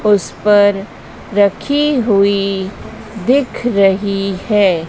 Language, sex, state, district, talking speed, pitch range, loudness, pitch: Hindi, male, Madhya Pradesh, Dhar, 85 wpm, 195-220 Hz, -14 LUFS, 200 Hz